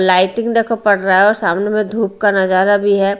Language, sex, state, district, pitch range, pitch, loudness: Hindi, female, Haryana, Rohtak, 190-215 Hz, 200 Hz, -14 LUFS